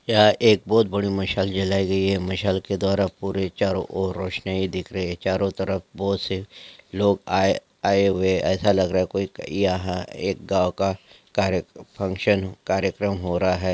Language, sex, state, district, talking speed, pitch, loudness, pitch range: Angika, male, Bihar, Samastipur, 185 wpm, 95 Hz, -23 LUFS, 95-100 Hz